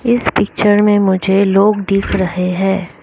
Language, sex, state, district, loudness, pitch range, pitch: Hindi, female, Arunachal Pradesh, Lower Dibang Valley, -13 LUFS, 190-205 Hz, 195 Hz